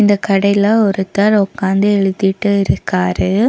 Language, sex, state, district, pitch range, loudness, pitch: Tamil, female, Tamil Nadu, Nilgiris, 195-205 Hz, -14 LUFS, 200 Hz